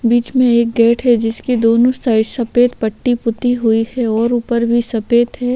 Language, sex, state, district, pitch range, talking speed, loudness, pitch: Hindi, female, Chhattisgarh, Korba, 230-245 Hz, 195 wpm, -15 LUFS, 235 Hz